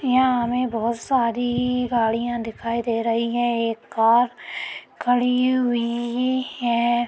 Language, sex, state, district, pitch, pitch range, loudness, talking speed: Hindi, female, Uttar Pradesh, Deoria, 240 Hz, 230-250 Hz, -22 LUFS, 120 wpm